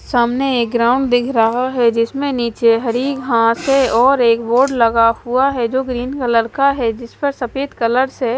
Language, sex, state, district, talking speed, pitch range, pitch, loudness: Hindi, female, Haryana, Charkhi Dadri, 200 wpm, 230-265 Hz, 245 Hz, -15 LUFS